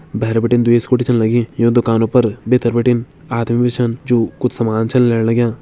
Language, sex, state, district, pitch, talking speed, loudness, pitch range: Hindi, male, Uttarakhand, Tehri Garhwal, 120 Hz, 215 wpm, -15 LUFS, 115-125 Hz